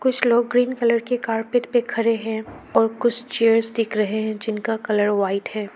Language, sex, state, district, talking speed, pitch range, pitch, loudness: Hindi, female, Arunachal Pradesh, Lower Dibang Valley, 200 wpm, 215-240 Hz, 225 Hz, -21 LUFS